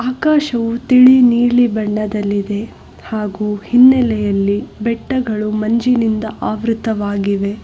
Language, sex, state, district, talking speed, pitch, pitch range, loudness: Kannada, female, Karnataka, Bangalore, 70 wpm, 220 Hz, 210-245 Hz, -15 LUFS